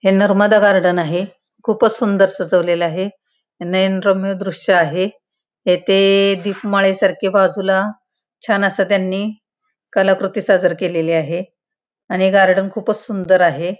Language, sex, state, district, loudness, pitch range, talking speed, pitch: Marathi, female, Maharashtra, Pune, -16 LUFS, 185-205 Hz, 125 wpm, 195 Hz